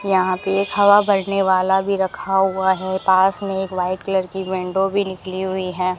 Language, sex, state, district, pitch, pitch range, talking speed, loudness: Hindi, female, Rajasthan, Bikaner, 190 Hz, 185-195 Hz, 210 wpm, -19 LUFS